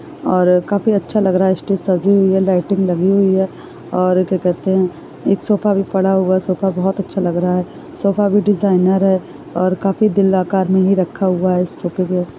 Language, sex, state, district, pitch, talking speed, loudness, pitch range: Hindi, female, Chhattisgarh, Sarguja, 190 Hz, 225 wpm, -16 LUFS, 180-195 Hz